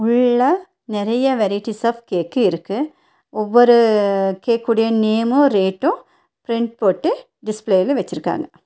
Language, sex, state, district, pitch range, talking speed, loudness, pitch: Tamil, female, Tamil Nadu, Nilgiris, 205-250 Hz, 105 wpm, -18 LUFS, 230 Hz